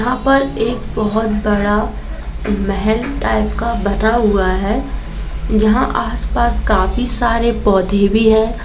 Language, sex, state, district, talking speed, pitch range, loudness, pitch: Hindi, female, Jharkhand, Jamtara, 130 wpm, 205-235 Hz, -16 LUFS, 220 Hz